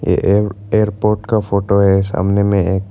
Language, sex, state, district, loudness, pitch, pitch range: Hindi, male, Arunachal Pradesh, Lower Dibang Valley, -15 LUFS, 100 Hz, 95-105 Hz